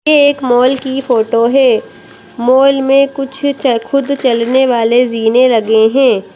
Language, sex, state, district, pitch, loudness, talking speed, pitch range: Hindi, female, Madhya Pradesh, Bhopal, 260 Hz, -11 LUFS, 150 wpm, 235-275 Hz